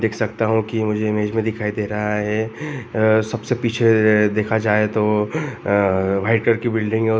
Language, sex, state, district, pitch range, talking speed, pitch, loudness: Hindi, male, Chhattisgarh, Raigarh, 105-110 Hz, 190 wpm, 110 Hz, -19 LUFS